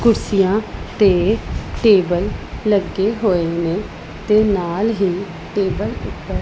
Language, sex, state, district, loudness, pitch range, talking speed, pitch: Punjabi, female, Punjab, Pathankot, -18 LUFS, 185-215 Hz, 110 wpm, 200 Hz